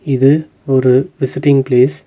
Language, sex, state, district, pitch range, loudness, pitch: Tamil, male, Tamil Nadu, Nilgiris, 130-145 Hz, -13 LUFS, 135 Hz